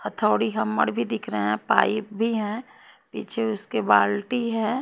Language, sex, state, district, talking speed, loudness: Hindi, female, Haryana, Jhajjar, 160 wpm, -24 LUFS